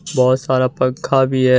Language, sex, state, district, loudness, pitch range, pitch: Hindi, male, Jharkhand, Deoghar, -16 LUFS, 130-135 Hz, 130 Hz